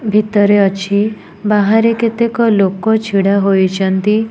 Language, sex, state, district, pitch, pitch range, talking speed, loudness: Odia, female, Odisha, Nuapada, 205 Hz, 195-220 Hz, 95 wpm, -13 LUFS